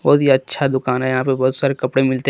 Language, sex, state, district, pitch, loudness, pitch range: Hindi, male, Jharkhand, Deoghar, 130 Hz, -17 LUFS, 130-135 Hz